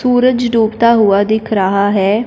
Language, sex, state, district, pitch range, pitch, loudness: Hindi, female, Punjab, Fazilka, 200-235 Hz, 220 Hz, -12 LUFS